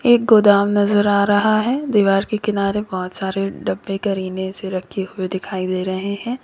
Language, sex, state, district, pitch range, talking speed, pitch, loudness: Hindi, female, Uttar Pradesh, Lalitpur, 190-210 Hz, 185 wpm, 200 Hz, -18 LUFS